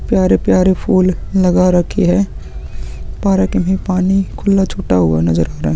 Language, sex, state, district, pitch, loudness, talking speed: Hindi, male, Uttarakhand, Tehri Garhwal, 180 Hz, -14 LUFS, 155 wpm